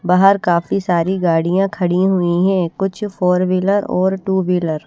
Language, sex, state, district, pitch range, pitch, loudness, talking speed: Hindi, female, Haryana, Charkhi Dadri, 175-195 Hz, 185 Hz, -16 LUFS, 170 wpm